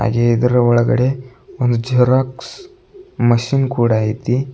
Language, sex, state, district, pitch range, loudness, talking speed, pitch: Kannada, male, Karnataka, Bidar, 120-135 Hz, -16 LUFS, 105 wpm, 125 Hz